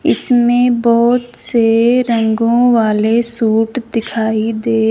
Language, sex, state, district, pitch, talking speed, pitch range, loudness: Hindi, female, Punjab, Fazilka, 230 Hz, 100 wpm, 225-240 Hz, -13 LUFS